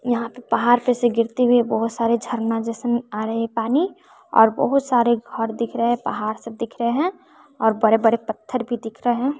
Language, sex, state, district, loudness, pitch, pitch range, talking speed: Hindi, female, Bihar, West Champaran, -21 LUFS, 235 Hz, 225-250 Hz, 205 wpm